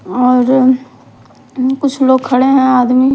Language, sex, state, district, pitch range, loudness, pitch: Hindi, female, Punjab, Kapurthala, 250-265 Hz, -11 LUFS, 260 Hz